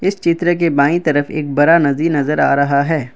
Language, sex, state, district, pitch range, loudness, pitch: Hindi, male, Assam, Kamrup Metropolitan, 140-170 Hz, -14 LUFS, 150 Hz